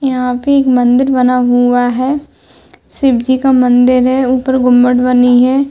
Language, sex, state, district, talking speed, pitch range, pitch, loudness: Hindi, female, Uttar Pradesh, Hamirpur, 170 wpm, 245-265 Hz, 255 Hz, -11 LUFS